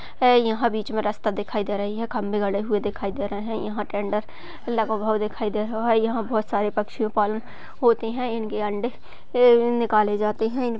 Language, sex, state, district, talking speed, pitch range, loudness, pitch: Hindi, female, Uttar Pradesh, Budaun, 205 wpm, 210-230 Hz, -24 LUFS, 220 Hz